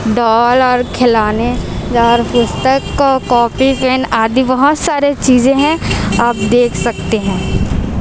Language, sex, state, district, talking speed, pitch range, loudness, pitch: Hindi, female, Chhattisgarh, Raipur, 125 wpm, 235-265 Hz, -12 LUFS, 245 Hz